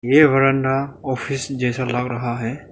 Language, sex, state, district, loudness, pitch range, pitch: Hindi, male, Arunachal Pradesh, Lower Dibang Valley, -20 LUFS, 125-135 Hz, 135 Hz